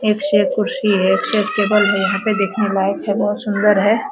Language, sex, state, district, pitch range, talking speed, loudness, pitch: Hindi, female, Bihar, Araria, 200-210 Hz, 260 wpm, -16 LUFS, 205 Hz